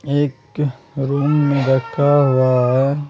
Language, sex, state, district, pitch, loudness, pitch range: Hindi, male, Bihar, Araria, 140 Hz, -17 LUFS, 130-145 Hz